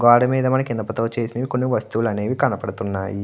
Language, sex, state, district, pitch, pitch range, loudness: Telugu, male, Andhra Pradesh, Guntur, 115 Hz, 110-130 Hz, -21 LUFS